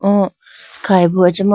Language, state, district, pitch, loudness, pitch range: Idu Mishmi, Arunachal Pradesh, Lower Dibang Valley, 190 Hz, -14 LUFS, 180-200 Hz